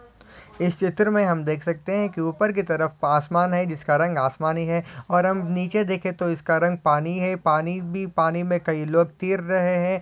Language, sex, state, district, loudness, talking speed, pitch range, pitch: Hindi, male, Maharashtra, Solapur, -23 LUFS, 210 wpm, 160-185 Hz, 175 Hz